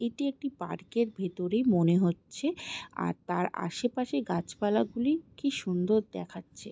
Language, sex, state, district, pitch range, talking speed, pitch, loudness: Bengali, female, West Bengal, Jalpaiguri, 185-270 Hz, 145 wpm, 225 Hz, -31 LUFS